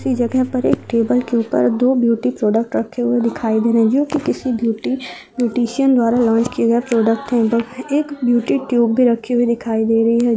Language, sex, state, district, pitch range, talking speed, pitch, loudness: Hindi, female, Uttarakhand, Tehri Garhwal, 230-250 Hz, 200 wpm, 240 Hz, -17 LUFS